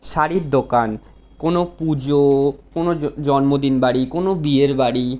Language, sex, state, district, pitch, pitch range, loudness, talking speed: Bengali, male, West Bengal, Jhargram, 140 Hz, 135-160 Hz, -18 LUFS, 125 wpm